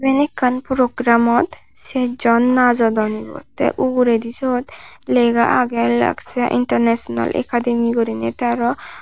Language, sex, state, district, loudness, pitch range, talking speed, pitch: Chakma, male, Tripura, Unakoti, -17 LUFS, 215-250 Hz, 120 wpm, 235 Hz